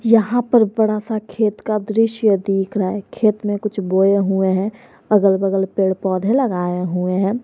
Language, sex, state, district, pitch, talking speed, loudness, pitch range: Hindi, female, Jharkhand, Garhwa, 205 Hz, 185 wpm, -18 LUFS, 190-220 Hz